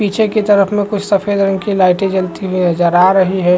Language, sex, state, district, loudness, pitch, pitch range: Hindi, male, Chhattisgarh, Rajnandgaon, -13 LUFS, 195 Hz, 185-205 Hz